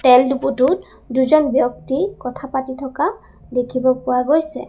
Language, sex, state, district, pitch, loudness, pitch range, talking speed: Assamese, female, Assam, Sonitpur, 265 Hz, -18 LUFS, 255-275 Hz, 130 wpm